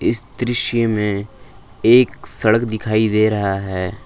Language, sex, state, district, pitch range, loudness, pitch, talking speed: Hindi, male, Jharkhand, Palamu, 105-120 Hz, -17 LUFS, 110 Hz, 135 wpm